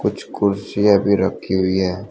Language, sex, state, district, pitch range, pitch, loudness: Hindi, male, Uttar Pradesh, Shamli, 95-100 Hz, 100 Hz, -18 LUFS